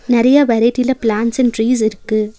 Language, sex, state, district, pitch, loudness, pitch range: Tamil, female, Tamil Nadu, Nilgiris, 235 Hz, -14 LUFS, 220-250 Hz